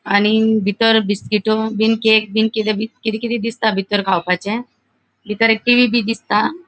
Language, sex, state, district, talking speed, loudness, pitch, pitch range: Konkani, female, Goa, North and South Goa, 145 wpm, -16 LUFS, 220 Hz, 210-225 Hz